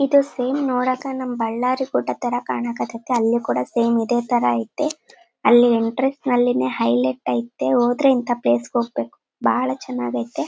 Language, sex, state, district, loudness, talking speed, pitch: Kannada, female, Karnataka, Bellary, -20 LUFS, 160 wpm, 240 Hz